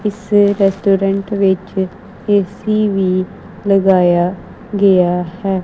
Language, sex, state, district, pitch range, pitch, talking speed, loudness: Punjabi, female, Punjab, Kapurthala, 190-205 Hz, 195 Hz, 85 wpm, -15 LUFS